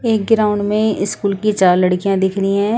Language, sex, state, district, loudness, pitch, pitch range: Hindi, female, Punjab, Pathankot, -16 LUFS, 200 Hz, 195-215 Hz